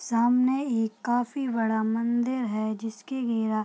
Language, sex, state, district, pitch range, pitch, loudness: Hindi, female, Bihar, Purnia, 220-250 Hz, 235 Hz, -27 LUFS